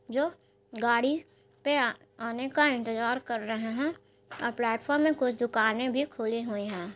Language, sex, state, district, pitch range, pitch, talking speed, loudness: Hindi, female, Bihar, Gaya, 225-285 Hz, 240 Hz, 165 wpm, -29 LUFS